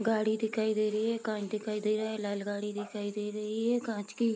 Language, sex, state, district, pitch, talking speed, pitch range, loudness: Hindi, female, Bihar, Sitamarhi, 215 Hz, 245 wpm, 210-220 Hz, -33 LUFS